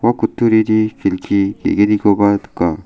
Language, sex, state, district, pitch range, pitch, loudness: Garo, male, Meghalaya, South Garo Hills, 100-110 Hz, 105 Hz, -15 LUFS